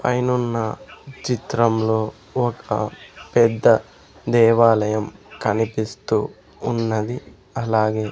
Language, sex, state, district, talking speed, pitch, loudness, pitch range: Telugu, male, Andhra Pradesh, Sri Satya Sai, 60 wpm, 115 Hz, -20 LUFS, 110-120 Hz